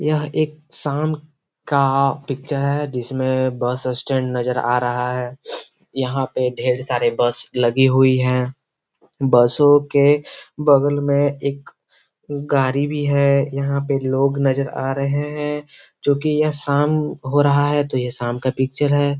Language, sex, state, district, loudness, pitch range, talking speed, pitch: Hindi, male, Bihar, Gopalganj, -19 LUFS, 130-145 Hz, 145 wpm, 140 Hz